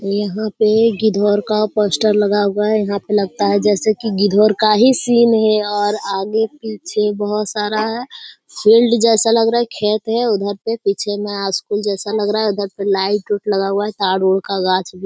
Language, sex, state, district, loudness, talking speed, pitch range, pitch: Hindi, female, Bihar, Jamui, -16 LUFS, 200 wpm, 200-220 Hz, 210 Hz